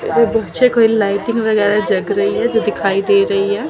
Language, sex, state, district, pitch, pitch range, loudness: Hindi, female, Chandigarh, Chandigarh, 220 Hz, 195-235 Hz, -15 LUFS